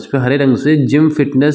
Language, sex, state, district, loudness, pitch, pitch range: Hindi, male, Chhattisgarh, Rajnandgaon, -12 LUFS, 140 Hz, 135-150 Hz